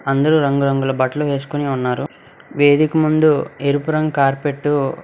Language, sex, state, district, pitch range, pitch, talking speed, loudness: Telugu, male, Telangana, Hyderabad, 135-150 Hz, 145 Hz, 130 wpm, -17 LUFS